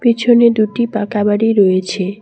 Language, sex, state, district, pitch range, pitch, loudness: Bengali, female, West Bengal, Cooch Behar, 205-235 Hz, 215 Hz, -13 LUFS